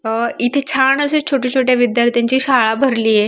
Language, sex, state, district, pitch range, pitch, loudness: Marathi, female, Maharashtra, Aurangabad, 235-270 Hz, 250 Hz, -14 LUFS